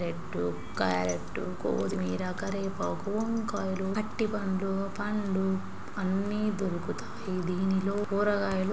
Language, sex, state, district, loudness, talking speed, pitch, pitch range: Telugu, female, Andhra Pradesh, Anantapur, -31 LUFS, 80 wpm, 195 Hz, 185-205 Hz